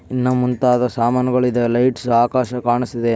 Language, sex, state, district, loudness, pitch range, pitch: Kannada, male, Karnataka, Bellary, -17 LUFS, 120-125 Hz, 125 Hz